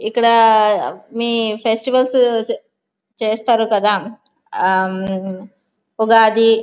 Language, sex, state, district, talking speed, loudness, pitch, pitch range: Telugu, female, Andhra Pradesh, Visakhapatnam, 65 wpm, -15 LUFS, 225 Hz, 210-230 Hz